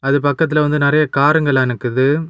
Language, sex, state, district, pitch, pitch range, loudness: Tamil, male, Tamil Nadu, Kanyakumari, 145 Hz, 135-150 Hz, -15 LUFS